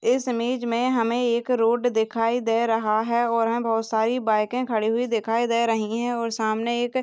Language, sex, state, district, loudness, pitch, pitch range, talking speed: Hindi, female, Chhattisgarh, Bastar, -23 LUFS, 230 Hz, 225-240 Hz, 205 wpm